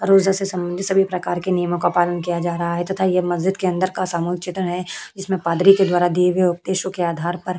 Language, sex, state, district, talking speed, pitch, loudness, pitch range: Hindi, female, Uttar Pradesh, Hamirpur, 260 wpm, 180 Hz, -20 LUFS, 175-190 Hz